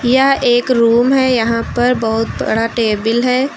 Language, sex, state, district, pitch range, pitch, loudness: Hindi, female, Uttar Pradesh, Lucknow, 230-255 Hz, 240 Hz, -14 LUFS